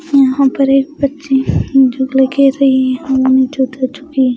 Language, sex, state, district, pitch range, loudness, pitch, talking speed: Hindi, female, Bihar, West Champaran, 260-275 Hz, -13 LUFS, 270 Hz, 150 wpm